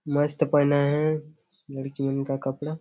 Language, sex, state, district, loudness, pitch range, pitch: Hindi, male, Chhattisgarh, Bastar, -25 LUFS, 135-155 Hz, 145 Hz